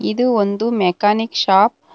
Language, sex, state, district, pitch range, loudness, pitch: Kannada, female, Karnataka, Bangalore, 200-230 Hz, -16 LUFS, 210 Hz